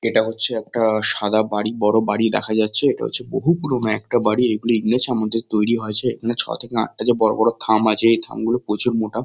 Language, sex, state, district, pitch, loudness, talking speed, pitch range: Bengali, male, West Bengal, Kolkata, 110 Hz, -19 LUFS, 225 wpm, 110-120 Hz